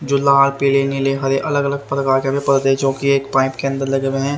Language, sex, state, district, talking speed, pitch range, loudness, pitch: Hindi, male, Haryana, Rohtak, 260 wpm, 135-140 Hz, -17 LUFS, 135 Hz